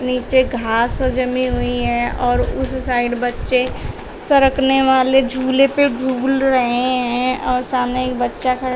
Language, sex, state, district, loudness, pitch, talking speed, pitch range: Hindi, female, Uttar Pradesh, Shamli, -17 LUFS, 255 Hz, 145 wpm, 245-260 Hz